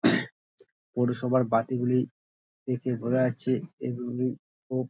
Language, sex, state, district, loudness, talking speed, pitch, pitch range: Bengali, male, West Bengal, Dakshin Dinajpur, -28 LUFS, 100 wpm, 125 Hz, 120-130 Hz